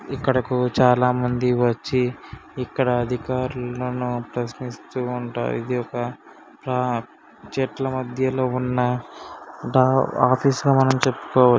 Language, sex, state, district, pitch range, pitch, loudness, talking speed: Telugu, male, Telangana, Karimnagar, 125-130 Hz, 125 Hz, -22 LUFS, 90 wpm